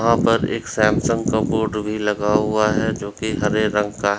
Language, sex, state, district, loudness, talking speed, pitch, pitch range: Hindi, male, Uttar Pradesh, Lalitpur, -20 LUFS, 230 wpm, 105 Hz, 105-110 Hz